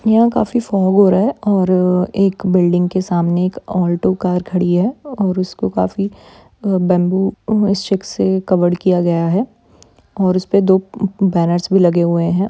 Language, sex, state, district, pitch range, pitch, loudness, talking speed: Hindi, female, Bihar, Supaul, 180-200 Hz, 185 Hz, -16 LUFS, 135 wpm